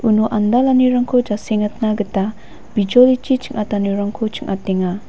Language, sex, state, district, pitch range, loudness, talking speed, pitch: Garo, female, Meghalaya, West Garo Hills, 205-245 Hz, -17 LUFS, 85 wpm, 215 Hz